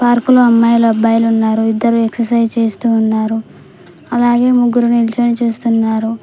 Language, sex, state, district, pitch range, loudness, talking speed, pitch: Telugu, female, Telangana, Mahabubabad, 225-240 Hz, -13 LUFS, 125 wpm, 230 Hz